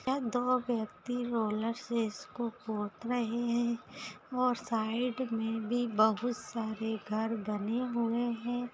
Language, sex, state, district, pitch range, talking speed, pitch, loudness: Hindi, female, Uttar Pradesh, Budaun, 220-245 Hz, 130 wpm, 235 Hz, -33 LUFS